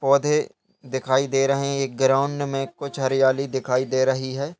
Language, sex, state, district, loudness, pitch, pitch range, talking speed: Hindi, male, Uttar Pradesh, Budaun, -22 LUFS, 135 Hz, 130-140 Hz, 185 wpm